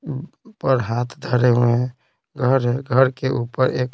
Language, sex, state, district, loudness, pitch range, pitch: Hindi, male, Bihar, Patna, -20 LUFS, 125-135 Hz, 130 Hz